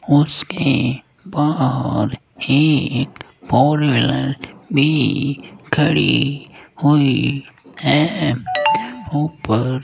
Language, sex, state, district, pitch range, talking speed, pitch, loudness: Hindi, male, Rajasthan, Jaipur, 135-150 Hz, 65 wpm, 145 Hz, -18 LUFS